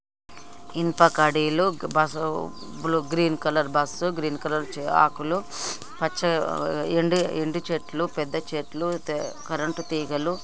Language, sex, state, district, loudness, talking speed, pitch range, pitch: Telugu, female, Andhra Pradesh, Guntur, -25 LUFS, 115 wpm, 155-170 Hz, 160 Hz